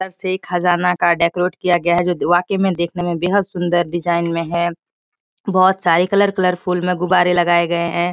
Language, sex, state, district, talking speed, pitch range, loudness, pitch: Hindi, female, Bihar, Jahanabad, 200 wpm, 175-185 Hz, -17 LUFS, 175 Hz